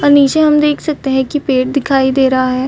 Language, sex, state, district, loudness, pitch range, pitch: Hindi, female, Chhattisgarh, Raigarh, -12 LUFS, 265-295 Hz, 275 Hz